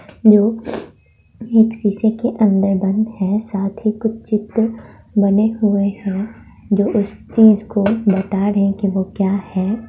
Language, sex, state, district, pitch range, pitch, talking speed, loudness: Hindi, female, Bihar, Madhepura, 200-220 Hz, 210 Hz, 150 wpm, -17 LUFS